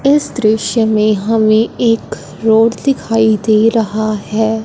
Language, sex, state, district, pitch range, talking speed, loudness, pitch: Hindi, female, Punjab, Fazilka, 215-225 Hz, 130 wpm, -13 LUFS, 220 Hz